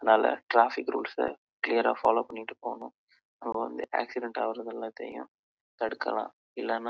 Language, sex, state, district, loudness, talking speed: Tamil, male, Karnataka, Chamarajanagar, -30 LUFS, 105 wpm